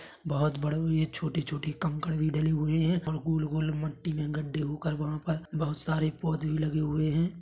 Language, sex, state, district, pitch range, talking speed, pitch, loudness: Hindi, male, Chhattisgarh, Bilaspur, 155-160 Hz, 235 wpm, 155 Hz, -30 LUFS